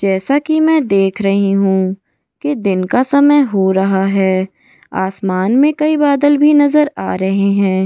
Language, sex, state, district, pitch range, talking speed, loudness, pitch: Hindi, female, Goa, North and South Goa, 190-290 Hz, 170 wpm, -13 LUFS, 200 Hz